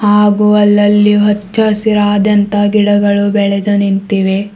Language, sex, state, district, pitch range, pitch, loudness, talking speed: Kannada, female, Karnataka, Bidar, 205-210 Hz, 205 Hz, -11 LUFS, 90 wpm